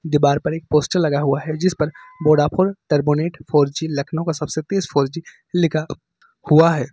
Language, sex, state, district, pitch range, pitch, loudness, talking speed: Hindi, male, Uttar Pradesh, Lucknow, 150-165 Hz, 155 Hz, -19 LUFS, 190 wpm